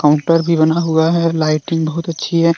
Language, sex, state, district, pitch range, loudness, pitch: Hindi, male, Jharkhand, Deoghar, 155-165 Hz, -15 LUFS, 165 Hz